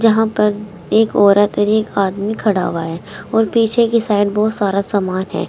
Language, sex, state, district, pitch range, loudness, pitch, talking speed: Hindi, female, Uttar Pradesh, Saharanpur, 200-220 Hz, -16 LUFS, 210 Hz, 195 wpm